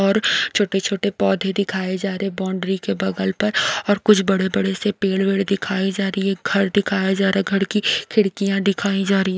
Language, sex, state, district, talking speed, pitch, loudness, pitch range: Hindi, female, Odisha, Nuapada, 215 wpm, 195 Hz, -20 LUFS, 190-200 Hz